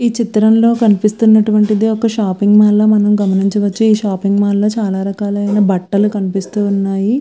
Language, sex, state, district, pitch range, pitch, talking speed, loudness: Telugu, female, Andhra Pradesh, Visakhapatnam, 200-215 Hz, 210 Hz, 160 wpm, -13 LUFS